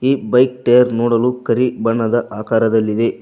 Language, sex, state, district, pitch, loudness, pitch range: Kannada, male, Karnataka, Koppal, 115 Hz, -15 LUFS, 115-125 Hz